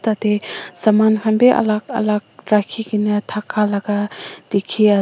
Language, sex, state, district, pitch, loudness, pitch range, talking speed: Nagamese, female, Nagaland, Dimapur, 210 Hz, -17 LUFS, 210-220 Hz, 145 wpm